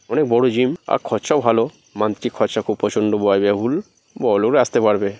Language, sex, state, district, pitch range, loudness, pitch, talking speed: Bengali, male, West Bengal, North 24 Parganas, 105-125 Hz, -19 LUFS, 115 Hz, 150 wpm